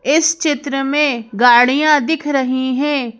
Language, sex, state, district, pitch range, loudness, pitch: Hindi, female, Madhya Pradesh, Bhopal, 255-295 Hz, -15 LUFS, 275 Hz